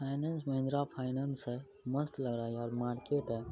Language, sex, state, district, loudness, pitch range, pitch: Hindi, male, Bihar, Araria, -37 LUFS, 120-140 Hz, 135 Hz